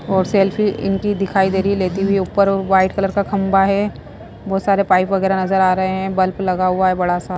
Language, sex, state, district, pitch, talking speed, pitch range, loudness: Hindi, female, Himachal Pradesh, Shimla, 195 Hz, 230 wpm, 185-195 Hz, -17 LUFS